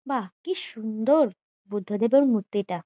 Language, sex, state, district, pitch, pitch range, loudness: Bengali, female, West Bengal, Jhargram, 220 Hz, 205-275 Hz, -25 LUFS